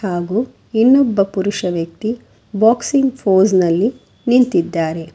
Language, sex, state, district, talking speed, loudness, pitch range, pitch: Kannada, female, Karnataka, Bangalore, 95 wpm, -16 LUFS, 180-240 Hz, 205 Hz